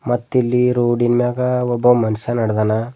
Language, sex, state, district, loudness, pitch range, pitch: Kannada, male, Karnataka, Bidar, -17 LUFS, 115-125 Hz, 120 Hz